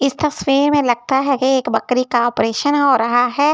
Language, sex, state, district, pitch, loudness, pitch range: Hindi, female, Delhi, New Delhi, 265 Hz, -16 LUFS, 245-285 Hz